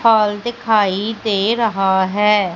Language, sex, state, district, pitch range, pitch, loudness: Hindi, female, Madhya Pradesh, Umaria, 195-225 Hz, 210 Hz, -16 LUFS